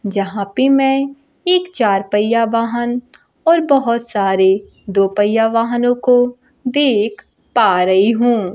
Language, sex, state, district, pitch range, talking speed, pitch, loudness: Hindi, female, Bihar, Kaimur, 205-260 Hz, 125 wpm, 235 Hz, -15 LUFS